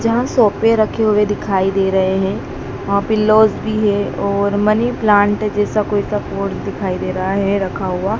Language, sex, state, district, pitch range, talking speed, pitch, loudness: Hindi, female, Madhya Pradesh, Dhar, 195-215 Hz, 185 wpm, 205 Hz, -16 LUFS